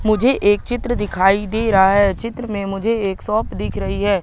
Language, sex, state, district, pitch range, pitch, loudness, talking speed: Hindi, male, Madhya Pradesh, Katni, 195-225 Hz, 205 Hz, -18 LUFS, 210 wpm